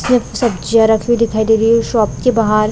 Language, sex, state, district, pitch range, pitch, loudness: Hindi, female, Chhattisgarh, Bilaspur, 220-235 Hz, 225 Hz, -14 LUFS